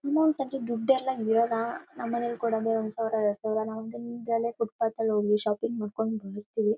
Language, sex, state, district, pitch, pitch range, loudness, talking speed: Kannada, female, Karnataka, Mysore, 225 Hz, 220-235 Hz, -29 LUFS, 160 wpm